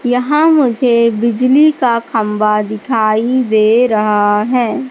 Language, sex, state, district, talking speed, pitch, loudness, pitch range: Hindi, female, Madhya Pradesh, Katni, 110 wpm, 235 Hz, -12 LUFS, 215-255 Hz